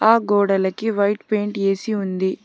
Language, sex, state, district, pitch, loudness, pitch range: Telugu, female, Telangana, Hyderabad, 205 Hz, -20 LUFS, 195-215 Hz